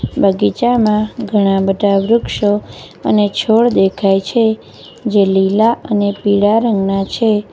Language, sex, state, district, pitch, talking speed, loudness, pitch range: Gujarati, female, Gujarat, Valsad, 205 Hz, 110 wpm, -14 LUFS, 195-225 Hz